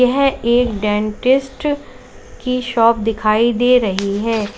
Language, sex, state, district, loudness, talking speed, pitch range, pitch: Hindi, female, Uttar Pradesh, Lalitpur, -16 LUFS, 120 wpm, 215-250 Hz, 235 Hz